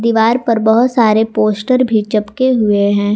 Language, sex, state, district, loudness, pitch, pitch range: Hindi, female, Jharkhand, Garhwa, -13 LUFS, 220 Hz, 215-240 Hz